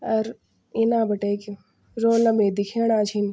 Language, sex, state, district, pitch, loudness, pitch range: Garhwali, female, Uttarakhand, Tehri Garhwal, 220 Hz, -23 LUFS, 205-230 Hz